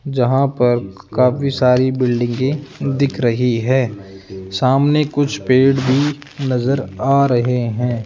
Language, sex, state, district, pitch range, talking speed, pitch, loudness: Hindi, male, Rajasthan, Jaipur, 120-140 Hz, 125 wpm, 130 Hz, -17 LUFS